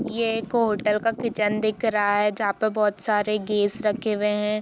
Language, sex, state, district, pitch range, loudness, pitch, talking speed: Hindi, female, Bihar, East Champaran, 210-225 Hz, -23 LUFS, 210 Hz, 220 wpm